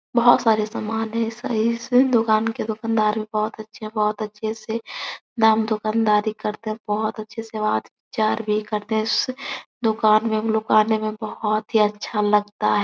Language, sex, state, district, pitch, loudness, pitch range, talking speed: Hindi, female, Bihar, Supaul, 215 Hz, -22 LUFS, 215-225 Hz, 185 wpm